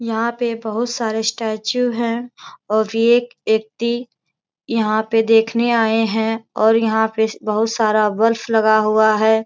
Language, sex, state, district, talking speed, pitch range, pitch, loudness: Hindi, female, Bihar, Jamui, 145 wpm, 220-230 Hz, 225 Hz, -18 LUFS